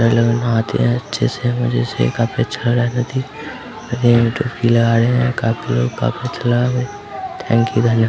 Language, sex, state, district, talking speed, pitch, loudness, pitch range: Hindi, male, Bihar, Samastipur, 60 wpm, 115 Hz, -17 LUFS, 115-125 Hz